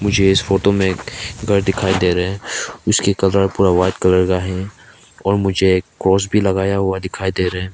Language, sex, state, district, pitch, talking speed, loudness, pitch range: Hindi, male, Nagaland, Kohima, 95 Hz, 215 wpm, -17 LUFS, 95-100 Hz